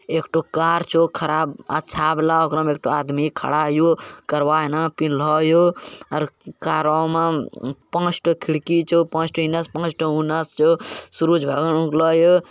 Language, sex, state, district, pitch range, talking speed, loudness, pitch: Maithili, male, Bihar, Bhagalpur, 155-165 Hz, 180 wpm, -20 LUFS, 160 Hz